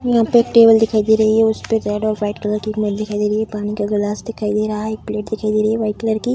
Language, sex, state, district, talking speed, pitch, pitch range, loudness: Hindi, female, Bihar, Darbhanga, 320 wpm, 215 Hz, 210-220 Hz, -17 LUFS